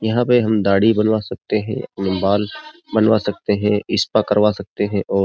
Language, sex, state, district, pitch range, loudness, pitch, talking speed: Hindi, male, Uttar Pradesh, Jyotiba Phule Nagar, 100-110 Hz, -18 LUFS, 105 Hz, 205 wpm